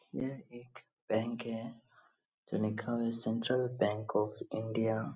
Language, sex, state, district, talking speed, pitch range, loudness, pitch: Hindi, male, Bihar, Jahanabad, 150 wpm, 110-120 Hz, -36 LUFS, 115 Hz